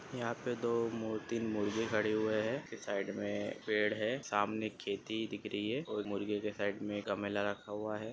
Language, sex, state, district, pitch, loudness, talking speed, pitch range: Hindi, male, Maharashtra, Nagpur, 105 Hz, -37 LUFS, 205 wpm, 105-110 Hz